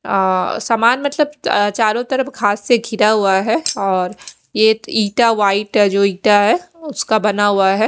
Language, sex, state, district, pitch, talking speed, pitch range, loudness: Hindi, female, Odisha, Khordha, 215 Hz, 165 wpm, 200-240 Hz, -15 LUFS